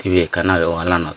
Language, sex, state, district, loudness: Chakma, male, Tripura, Dhalai, -17 LUFS